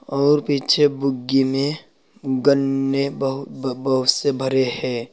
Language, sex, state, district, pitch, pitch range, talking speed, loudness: Hindi, male, Uttar Pradesh, Saharanpur, 135 Hz, 130-140 Hz, 130 wpm, -20 LUFS